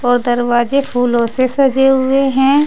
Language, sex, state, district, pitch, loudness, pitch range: Hindi, female, Uttar Pradesh, Saharanpur, 260 Hz, -13 LUFS, 245-270 Hz